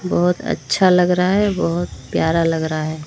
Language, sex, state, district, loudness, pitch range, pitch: Hindi, female, Uttar Pradesh, Lucknow, -18 LUFS, 155-185 Hz, 165 Hz